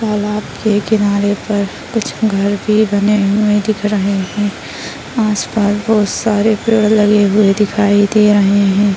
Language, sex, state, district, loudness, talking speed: Hindi, female, Bihar, Bhagalpur, -14 LUFS, 145 wpm